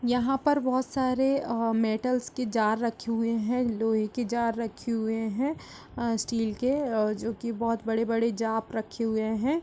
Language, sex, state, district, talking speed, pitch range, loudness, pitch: Hindi, female, Bihar, Gaya, 180 wpm, 225-250 Hz, -28 LUFS, 230 Hz